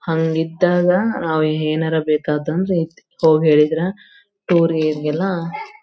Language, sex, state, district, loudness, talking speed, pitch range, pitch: Kannada, female, Karnataka, Belgaum, -18 LUFS, 115 wpm, 155-180 Hz, 165 Hz